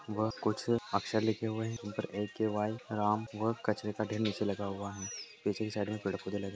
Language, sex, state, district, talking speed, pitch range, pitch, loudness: Hindi, male, Chhattisgarh, Raigarh, 100 wpm, 105-110 Hz, 105 Hz, -35 LUFS